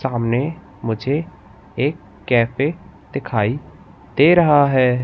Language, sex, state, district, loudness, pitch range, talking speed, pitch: Hindi, male, Madhya Pradesh, Katni, -18 LUFS, 120-150 Hz, 95 wpm, 130 Hz